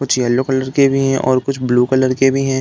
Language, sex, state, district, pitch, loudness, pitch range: Hindi, male, Uttar Pradesh, Deoria, 130 Hz, -15 LUFS, 130-135 Hz